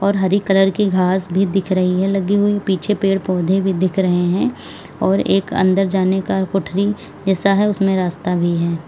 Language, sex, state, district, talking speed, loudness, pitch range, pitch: Hindi, female, Uttar Pradesh, Lalitpur, 195 wpm, -17 LUFS, 180-195 Hz, 190 Hz